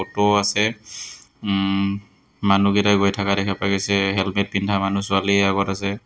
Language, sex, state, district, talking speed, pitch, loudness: Assamese, male, Assam, Hailakandi, 150 wpm, 100 Hz, -20 LUFS